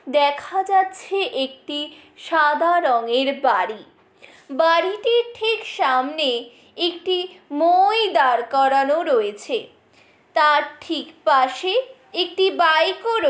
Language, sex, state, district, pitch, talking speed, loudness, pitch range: Bengali, female, West Bengal, Paschim Medinipur, 335 Hz, 100 wpm, -20 LUFS, 290-385 Hz